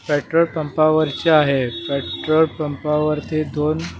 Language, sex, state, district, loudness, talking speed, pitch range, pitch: Marathi, male, Maharashtra, Mumbai Suburban, -19 LUFS, 90 wpm, 145-155 Hz, 150 Hz